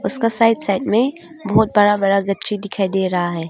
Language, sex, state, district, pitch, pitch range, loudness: Hindi, female, Arunachal Pradesh, Longding, 205 Hz, 195-225 Hz, -17 LUFS